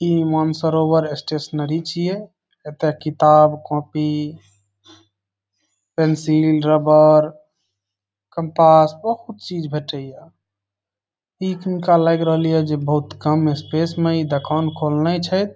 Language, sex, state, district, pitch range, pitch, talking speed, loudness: Maithili, male, Bihar, Saharsa, 150-165 Hz, 155 Hz, 110 wpm, -18 LUFS